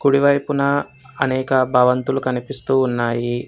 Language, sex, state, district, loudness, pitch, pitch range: Telugu, male, Telangana, Hyderabad, -19 LUFS, 130 Hz, 125-140 Hz